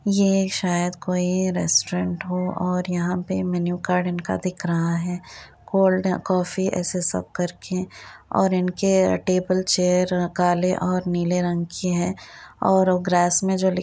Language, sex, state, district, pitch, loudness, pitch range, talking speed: Hindi, female, Uttar Pradesh, Varanasi, 180 Hz, -22 LUFS, 180-185 Hz, 150 wpm